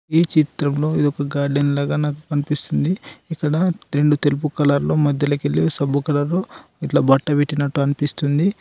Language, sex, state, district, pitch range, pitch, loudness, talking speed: Telugu, male, Telangana, Adilabad, 145-155 Hz, 145 Hz, -19 LUFS, 130 wpm